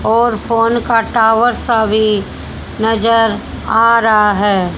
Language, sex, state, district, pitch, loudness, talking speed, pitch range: Hindi, female, Haryana, Jhajjar, 225 Hz, -13 LUFS, 125 wpm, 215-230 Hz